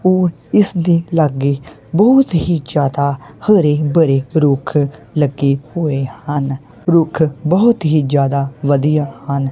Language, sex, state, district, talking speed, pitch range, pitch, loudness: Punjabi, male, Punjab, Kapurthala, 105 wpm, 140-165 Hz, 150 Hz, -15 LUFS